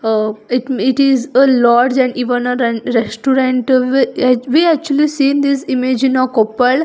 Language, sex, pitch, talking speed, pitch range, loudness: English, female, 255 Hz, 195 wpm, 245-270 Hz, -14 LUFS